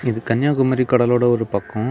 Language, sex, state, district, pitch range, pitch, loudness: Tamil, male, Tamil Nadu, Kanyakumari, 115-125 Hz, 120 Hz, -18 LUFS